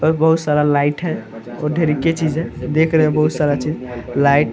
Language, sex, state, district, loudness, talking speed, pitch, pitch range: Hindi, male, Bihar, Araria, -17 LUFS, 250 wpm, 150 Hz, 145-160 Hz